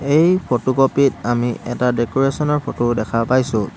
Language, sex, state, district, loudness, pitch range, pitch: Assamese, male, Assam, Hailakandi, -18 LUFS, 120-140 Hz, 125 Hz